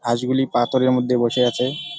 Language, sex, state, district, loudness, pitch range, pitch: Bengali, male, West Bengal, Jalpaiguri, -19 LUFS, 120-130 Hz, 125 Hz